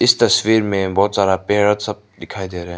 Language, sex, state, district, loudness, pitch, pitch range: Hindi, male, Manipur, Imphal West, -16 LUFS, 95 Hz, 95-105 Hz